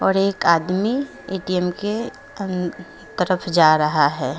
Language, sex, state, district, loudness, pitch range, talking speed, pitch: Hindi, female, Uttar Pradesh, Lucknow, -20 LUFS, 170-205 Hz, 125 wpm, 185 Hz